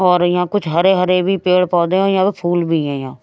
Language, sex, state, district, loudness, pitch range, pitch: Hindi, female, Haryana, Rohtak, -15 LUFS, 170-190 Hz, 180 Hz